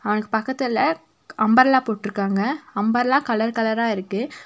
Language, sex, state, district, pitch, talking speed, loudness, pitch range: Tamil, female, Tamil Nadu, Nilgiris, 225 Hz, 110 wpm, -21 LUFS, 210-255 Hz